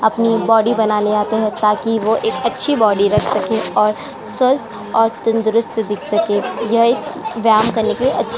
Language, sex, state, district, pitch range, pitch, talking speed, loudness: Hindi, female, Uttar Pradesh, Jyotiba Phule Nagar, 215-230 Hz, 225 Hz, 180 wpm, -16 LUFS